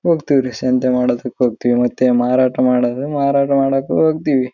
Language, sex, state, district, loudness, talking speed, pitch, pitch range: Kannada, male, Karnataka, Raichur, -16 LUFS, 160 wpm, 130 Hz, 125-140 Hz